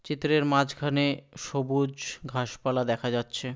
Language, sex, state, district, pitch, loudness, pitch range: Bengali, male, West Bengal, Dakshin Dinajpur, 140 Hz, -28 LUFS, 125-145 Hz